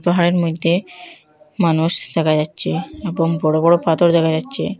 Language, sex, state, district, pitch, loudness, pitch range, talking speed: Bengali, female, Assam, Hailakandi, 165 Hz, -16 LUFS, 160-175 Hz, 140 wpm